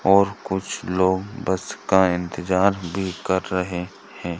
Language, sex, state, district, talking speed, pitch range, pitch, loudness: Hindi, male, Andhra Pradesh, Chittoor, 135 wpm, 90-95 Hz, 95 Hz, -22 LUFS